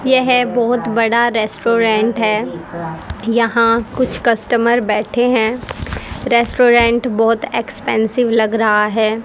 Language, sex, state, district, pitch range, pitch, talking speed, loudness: Hindi, female, Haryana, Rohtak, 220-240 Hz, 230 Hz, 105 wpm, -15 LUFS